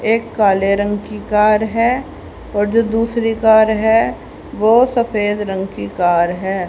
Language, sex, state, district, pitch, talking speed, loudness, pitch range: Hindi, female, Haryana, Rohtak, 215 Hz, 155 wpm, -15 LUFS, 200-225 Hz